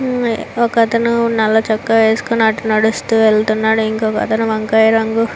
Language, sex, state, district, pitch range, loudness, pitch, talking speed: Telugu, female, Andhra Pradesh, Visakhapatnam, 220-230 Hz, -14 LUFS, 220 Hz, 145 wpm